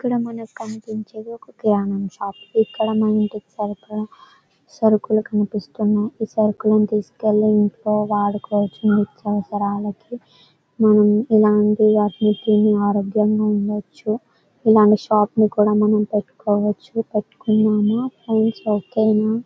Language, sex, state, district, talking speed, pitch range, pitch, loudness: Telugu, female, Telangana, Karimnagar, 95 wpm, 210-220 Hz, 215 Hz, -19 LUFS